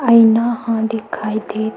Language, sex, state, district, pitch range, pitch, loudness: Chhattisgarhi, female, Chhattisgarh, Sukma, 220-230 Hz, 225 Hz, -16 LUFS